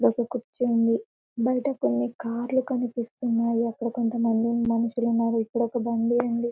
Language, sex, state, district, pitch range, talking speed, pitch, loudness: Telugu, female, Telangana, Karimnagar, 230-240 Hz, 130 wpm, 235 Hz, -26 LUFS